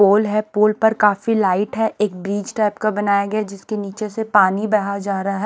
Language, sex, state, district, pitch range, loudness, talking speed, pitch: Hindi, male, Odisha, Nuapada, 200-215 Hz, -19 LUFS, 230 wpm, 210 Hz